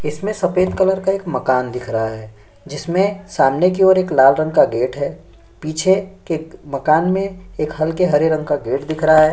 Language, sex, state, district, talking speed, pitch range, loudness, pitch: Hindi, male, Chhattisgarh, Sukma, 210 wpm, 140-185 Hz, -17 LUFS, 155 Hz